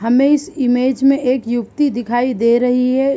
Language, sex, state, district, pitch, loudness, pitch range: Hindi, female, Bihar, East Champaran, 255 Hz, -15 LUFS, 240-275 Hz